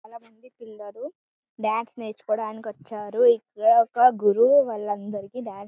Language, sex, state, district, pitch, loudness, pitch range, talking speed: Telugu, female, Telangana, Karimnagar, 225 Hz, -22 LUFS, 215-255 Hz, 125 wpm